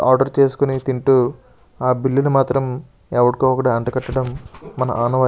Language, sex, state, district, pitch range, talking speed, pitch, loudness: Telugu, male, Andhra Pradesh, Srikakulam, 125-135 Hz, 125 wpm, 130 Hz, -18 LUFS